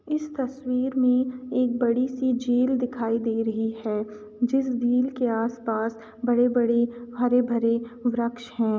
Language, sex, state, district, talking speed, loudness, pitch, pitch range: Hindi, female, Uttar Pradesh, Etah, 150 wpm, -25 LUFS, 240 Hz, 230-250 Hz